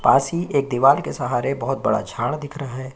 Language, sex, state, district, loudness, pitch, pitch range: Hindi, male, Chhattisgarh, Korba, -21 LUFS, 135 Hz, 125-140 Hz